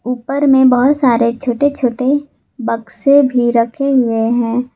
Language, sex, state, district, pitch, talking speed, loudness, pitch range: Hindi, female, Jharkhand, Garhwa, 250 Hz, 140 wpm, -14 LUFS, 235-275 Hz